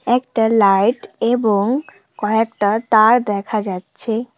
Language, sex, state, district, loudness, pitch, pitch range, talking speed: Bengali, female, West Bengal, Cooch Behar, -17 LUFS, 225 Hz, 205-240 Hz, 95 wpm